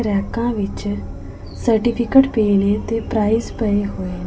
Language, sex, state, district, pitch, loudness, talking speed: Punjabi, female, Punjab, Pathankot, 205 Hz, -19 LUFS, 125 wpm